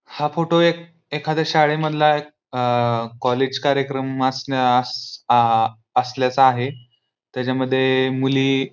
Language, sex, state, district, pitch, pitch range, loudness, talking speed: Marathi, male, Maharashtra, Pune, 130 Hz, 125-150 Hz, -19 LUFS, 125 wpm